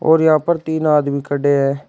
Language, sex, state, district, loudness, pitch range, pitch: Hindi, male, Uttar Pradesh, Shamli, -16 LUFS, 140-160 Hz, 150 Hz